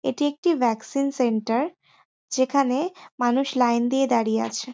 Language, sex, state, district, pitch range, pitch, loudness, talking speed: Bengali, female, West Bengal, North 24 Parganas, 235-275 Hz, 255 Hz, -23 LUFS, 125 wpm